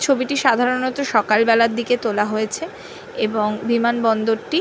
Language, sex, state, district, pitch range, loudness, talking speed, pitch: Bengali, female, West Bengal, North 24 Parganas, 220-275 Hz, -19 LUFS, 105 wpm, 235 Hz